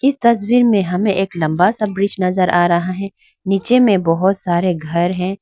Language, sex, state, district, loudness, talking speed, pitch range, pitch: Hindi, female, Arunachal Pradesh, Lower Dibang Valley, -16 LUFS, 200 wpm, 175-205 Hz, 190 Hz